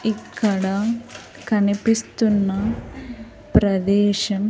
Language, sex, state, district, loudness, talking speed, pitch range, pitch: Telugu, female, Andhra Pradesh, Sri Satya Sai, -20 LUFS, 40 wpm, 200-225 Hz, 210 Hz